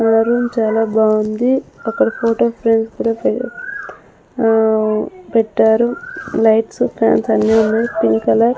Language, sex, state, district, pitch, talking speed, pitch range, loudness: Telugu, female, Andhra Pradesh, Sri Satya Sai, 225 Hz, 120 wpm, 220-235 Hz, -15 LUFS